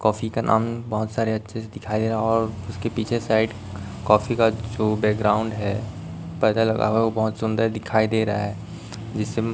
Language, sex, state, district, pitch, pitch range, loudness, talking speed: Hindi, male, Chhattisgarh, Raipur, 110 Hz, 105-115 Hz, -23 LUFS, 200 wpm